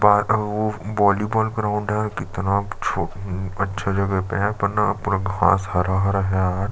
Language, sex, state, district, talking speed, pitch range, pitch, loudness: Hindi, male, Chhattisgarh, Jashpur, 185 wpm, 95-105 Hz, 100 Hz, -22 LUFS